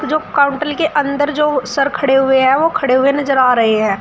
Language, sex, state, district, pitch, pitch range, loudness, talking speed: Hindi, female, Uttar Pradesh, Shamli, 275 Hz, 260-295 Hz, -14 LUFS, 240 wpm